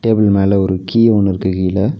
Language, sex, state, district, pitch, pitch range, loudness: Tamil, male, Tamil Nadu, Nilgiris, 100 Hz, 95-110 Hz, -14 LUFS